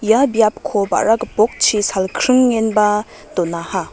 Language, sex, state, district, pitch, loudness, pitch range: Garo, female, Meghalaya, West Garo Hills, 215 Hz, -16 LUFS, 205-230 Hz